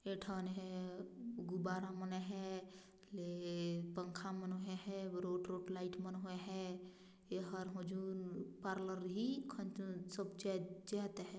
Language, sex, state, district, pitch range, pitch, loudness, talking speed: Chhattisgarhi, female, Chhattisgarh, Jashpur, 185-190 Hz, 185 Hz, -46 LUFS, 155 wpm